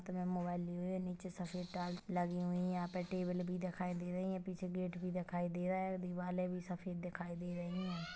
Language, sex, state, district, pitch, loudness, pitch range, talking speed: Hindi, female, Chhattisgarh, Kabirdham, 180 Hz, -42 LUFS, 175-180 Hz, 215 wpm